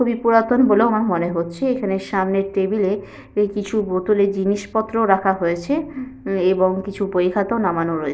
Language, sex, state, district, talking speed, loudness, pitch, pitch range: Bengali, female, West Bengal, Malda, 160 wpm, -19 LUFS, 200 Hz, 190-225 Hz